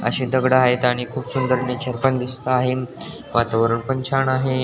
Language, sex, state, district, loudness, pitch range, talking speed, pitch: Marathi, male, Maharashtra, Dhule, -20 LUFS, 125-130 Hz, 180 wpm, 130 Hz